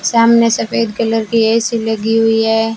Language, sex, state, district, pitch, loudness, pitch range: Hindi, female, Rajasthan, Bikaner, 225 Hz, -13 LUFS, 225-230 Hz